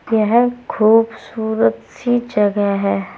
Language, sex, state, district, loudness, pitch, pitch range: Hindi, female, Uttar Pradesh, Saharanpur, -17 LUFS, 220 Hz, 200-235 Hz